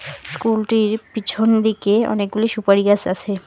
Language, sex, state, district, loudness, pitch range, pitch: Bengali, female, West Bengal, Alipurduar, -17 LUFS, 200-220 Hz, 215 Hz